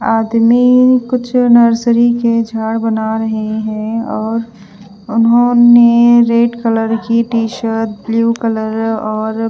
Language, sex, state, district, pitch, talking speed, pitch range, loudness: Hindi, female, Punjab, Fazilka, 230 Hz, 115 wpm, 220-235 Hz, -12 LUFS